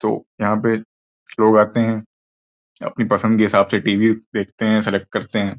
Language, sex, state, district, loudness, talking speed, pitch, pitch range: Hindi, male, Uttar Pradesh, Gorakhpur, -18 LUFS, 180 wpm, 110 Hz, 100-110 Hz